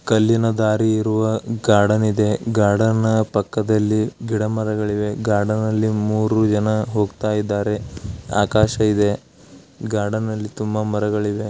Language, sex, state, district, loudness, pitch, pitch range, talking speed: Kannada, male, Karnataka, Belgaum, -19 LUFS, 110 Hz, 105-110 Hz, 95 wpm